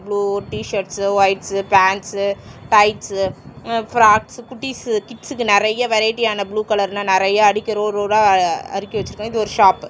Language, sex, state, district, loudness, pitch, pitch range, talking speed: Tamil, male, Tamil Nadu, Chennai, -17 LUFS, 205 Hz, 195-220 Hz, 145 wpm